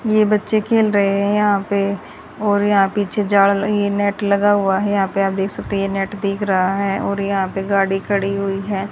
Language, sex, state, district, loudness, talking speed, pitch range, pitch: Hindi, female, Haryana, Jhajjar, -18 LUFS, 235 wpm, 195-205 Hz, 200 Hz